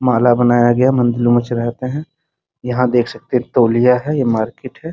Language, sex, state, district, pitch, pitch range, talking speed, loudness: Hindi, male, Bihar, Muzaffarpur, 125 Hz, 120-130 Hz, 205 wpm, -15 LUFS